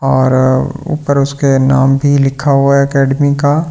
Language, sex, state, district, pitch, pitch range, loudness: Hindi, male, Delhi, New Delhi, 140 Hz, 135-140 Hz, -11 LUFS